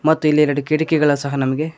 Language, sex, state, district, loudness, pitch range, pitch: Kannada, male, Karnataka, Koppal, -17 LUFS, 140-155 Hz, 150 Hz